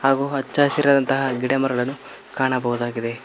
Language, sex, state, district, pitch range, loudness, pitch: Kannada, male, Karnataka, Koppal, 125-135 Hz, -19 LUFS, 135 Hz